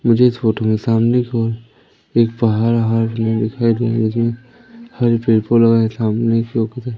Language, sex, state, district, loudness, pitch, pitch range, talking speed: Hindi, male, Madhya Pradesh, Umaria, -16 LUFS, 115 Hz, 115-120 Hz, 165 wpm